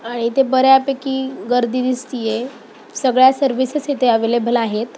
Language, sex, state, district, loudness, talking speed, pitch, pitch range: Marathi, female, Maharashtra, Pune, -17 LUFS, 135 wpm, 255 Hz, 235-265 Hz